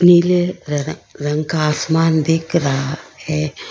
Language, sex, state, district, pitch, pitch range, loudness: Hindi, female, Karnataka, Bangalore, 155 Hz, 150-165 Hz, -18 LUFS